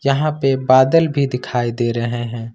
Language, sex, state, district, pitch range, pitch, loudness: Hindi, male, Jharkhand, Ranchi, 120-140 Hz, 130 Hz, -17 LUFS